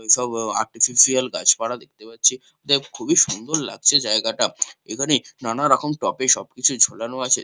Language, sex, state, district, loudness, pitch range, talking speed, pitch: Bengali, male, West Bengal, Kolkata, -19 LUFS, 115-135 Hz, 145 wpm, 130 Hz